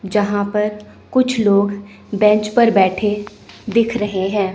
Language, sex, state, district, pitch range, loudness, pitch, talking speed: Hindi, female, Chandigarh, Chandigarh, 200-215 Hz, -17 LUFS, 210 Hz, 130 wpm